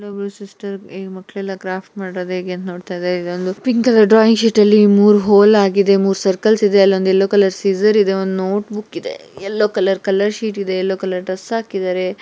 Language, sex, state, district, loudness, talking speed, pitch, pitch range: Kannada, female, Karnataka, Gulbarga, -15 LUFS, 190 wpm, 195 Hz, 190-210 Hz